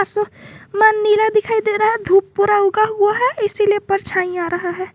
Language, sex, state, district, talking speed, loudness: Hindi, female, Jharkhand, Garhwa, 180 wpm, -16 LUFS